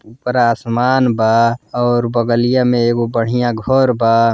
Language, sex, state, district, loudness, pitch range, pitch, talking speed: Bhojpuri, male, Uttar Pradesh, Deoria, -15 LUFS, 115-125 Hz, 120 Hz, 140 wpm